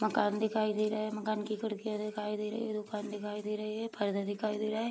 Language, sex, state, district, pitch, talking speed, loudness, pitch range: Hindi, female, Bihar, Vaishali, 215 Hz, 270 wpm, -35 LUFS, 210-215 Hz